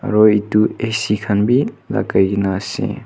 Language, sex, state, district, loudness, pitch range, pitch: Nagamese, male, Nagaland, Kohima, -17 LUFS, 100-110 Hz, 105 Hz